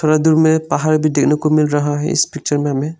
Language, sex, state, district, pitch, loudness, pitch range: Hindi, male, Arunachal Pradesh, Lower Dibang Valley, 155 Hz, -15 LUFS, 145-155 Hz